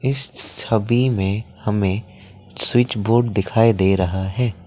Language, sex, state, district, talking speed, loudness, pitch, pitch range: Hindi, male, Assam, Kamrup Metropolitan, 130 wpm, -19 LUFS, 105 Hz, 95-120 Hz